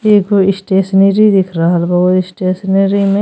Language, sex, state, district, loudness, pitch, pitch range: Bhojpuri, female, Uttar Pradesh, Ghazipur, -12 LUFS, 195 Hz, 185-200 Hz